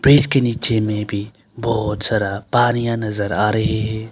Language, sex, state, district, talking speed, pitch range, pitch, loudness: Hindi, male, Arunachal Pradesh, Longding, 160 wpm, 105-115 Hz, 110 Hz, -18 LUFS